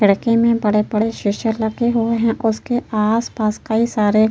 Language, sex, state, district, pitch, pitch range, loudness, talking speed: Hindi, female, Uttar Pradesh, Jyotiba Phule Nagar, 220 Hz, 215-230 Hz, -18 LUFS, 165 wpm